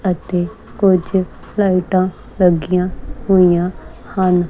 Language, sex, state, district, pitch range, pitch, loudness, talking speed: Punjabi, female, Punjab, Kapurthala, 180-190 Hz, 185 Hz, -16 LUFS, 80 wpm